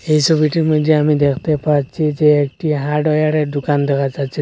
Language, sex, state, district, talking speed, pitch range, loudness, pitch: Bengali, male, Assam, Hailakandi, 165 wpm, 145-155 Hz, -16 LUFS, 150 Hz